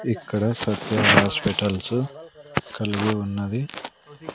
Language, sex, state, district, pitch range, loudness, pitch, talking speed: Telugu, male, Andhra Pradesh, Sri Satya Sai, 105-135 Hz, -23 LUFS, 110 Hz, 70 wpm